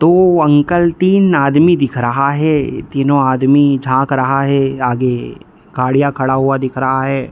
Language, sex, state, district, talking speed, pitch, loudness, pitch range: Hindi, male, Bihar, East Champaran, 165 wpm, 135 Hz, -13 LUFS, 130-150 Hz